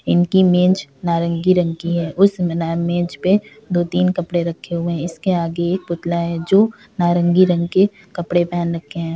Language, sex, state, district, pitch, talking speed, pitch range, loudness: Hindi, female, Uttar Pradesh, Varanasi, 175 Hz, 170 wpm, 170-185 Hz, -18 LUFS